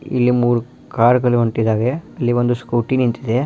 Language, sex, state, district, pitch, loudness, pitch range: Kannada, male, Karnataka, Dharwad, 120 Hz, -17 LUFS, 120-125 Hz